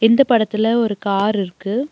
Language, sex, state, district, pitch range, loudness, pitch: Tamil, female, Tamil Nadu, Nilgiris, 200-230 Hz, -17 LUFS, 215 Hz